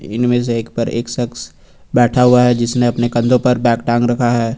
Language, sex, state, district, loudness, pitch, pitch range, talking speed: Hindi, male, Uttar Pradesh, Lucknow, -15 LUFS, 120 Hz, 120-125 Hz, 220 wpm